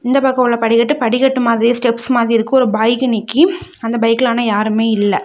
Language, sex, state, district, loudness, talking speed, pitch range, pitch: Tamil, female, Tamil Nadu, Kanyakumari, -14 LUFS, 195 wpm, 230-255 Hz, 235 Hz